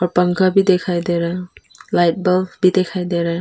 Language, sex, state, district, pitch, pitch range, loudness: Hindi, female, Arunachal Pradesh, Papum Pare, 180 Hz, 175-185 Hz, -17 LUFS